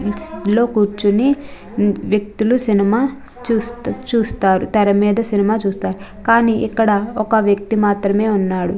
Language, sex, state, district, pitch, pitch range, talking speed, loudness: Telugu, female, Andhra Pradesh, Chittoor, 210 Hz, 205-230 Hz, 100 wpm, -17 LUFS